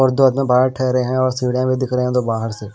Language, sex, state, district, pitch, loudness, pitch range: Hindi, male, Maharashtra, Washim, 125 Hz, -17 LUFS, 125-130 Hz